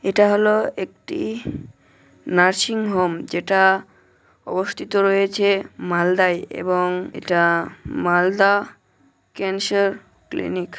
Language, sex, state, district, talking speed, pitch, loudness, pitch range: Bengali, male, West Bengal, Malda, 70 wpm, 190 Hz, -20 LUFS, 175-200 Hz